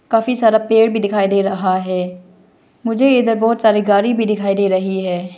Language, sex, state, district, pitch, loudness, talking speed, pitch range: Hindi, female, Arunachal Pradesh, Lower Dibang Valley, 205 Hz, -15 LUFS, 200 wpm, 190-225 Hz